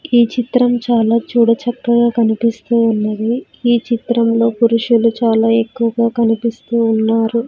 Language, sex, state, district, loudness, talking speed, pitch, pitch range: Telugu, female, Andhra Pradesh, Sri Satya Sai, -15 LUFS, 110 wpm, 230 Hz, 230-235 Hz